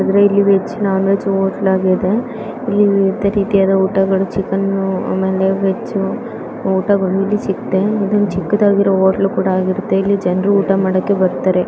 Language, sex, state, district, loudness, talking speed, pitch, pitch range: Kannada, female, Karnataka, Bellary, -15 LUFS, 85 wpm, 195 Hz, 190-200 Hz